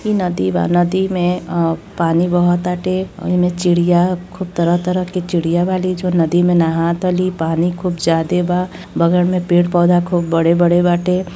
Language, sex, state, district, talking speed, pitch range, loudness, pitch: Bhojpuri, female, Uttar Pradesh, Deoria, 175 wpm, 170-180 Hz, -16 LUFS, 175 Hz